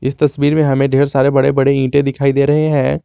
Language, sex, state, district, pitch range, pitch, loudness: Hindi, male, Jharkhand, Garhwa, 135-145 Hz, 140 Hz, -13 LUFS